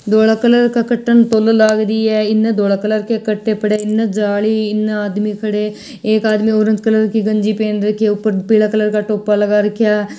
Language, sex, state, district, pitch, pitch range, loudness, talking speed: Hindi, female, Rajasthan, Churu, 215 Hz, 210-220 Hz, -14 LUFS, 175 wpm